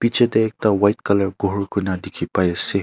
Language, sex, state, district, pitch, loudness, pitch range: Nagamese, male, Nagaland, Kohima, 100 Hz, -19 LUFS, 95-110 Hz